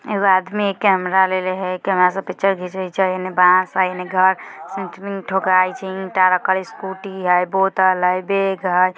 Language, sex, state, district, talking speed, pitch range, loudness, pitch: Bajjika, female, Bihar, Vaishali, 175 wpm, 185-190 Hz, -18 LUFS, 190 Hz